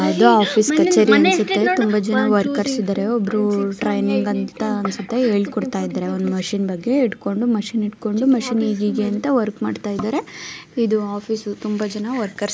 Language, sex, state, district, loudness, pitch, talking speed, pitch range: Kannada, female, Karnataka, Mysore, -19 LUFS, 210 Hz, 145 wpm, 205-230 Hz